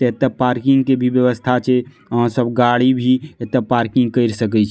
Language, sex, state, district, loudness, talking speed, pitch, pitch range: Maithili, male, Bihar, Madhepura, -16 LUFS, 190 wpm, 125 Hz, 120-130 Hz